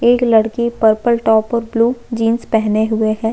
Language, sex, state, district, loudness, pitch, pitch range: Hindi, female, Chhattisgarh, Jashpur, -15 LUFS, 225 Hz, 220-235 Hz